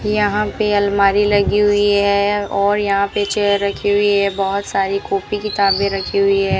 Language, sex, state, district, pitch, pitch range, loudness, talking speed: Hindi, female, Rajasthan, Bikaner, 205 Hz, 200-205 Hz, -16 LUFS, 180 wpm